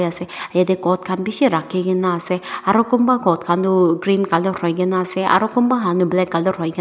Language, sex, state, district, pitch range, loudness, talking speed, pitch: Nagamese, female, Nagaland, Dimapur, 175-190 Hz, -18 LUFS, 210 wpm, 185 Hz